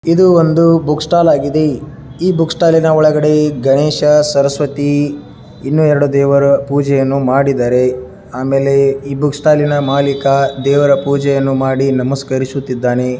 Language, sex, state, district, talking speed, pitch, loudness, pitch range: Kannada, male, Karnataka, Dharwad, 125 wpm, 140 Hz, -12 LUFS, 135-150 Hz